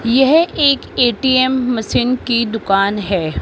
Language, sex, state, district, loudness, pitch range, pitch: Hindi, female, Rajasthan, Jaipur, -15 LUFS, 220-260 Hz, 245 Hz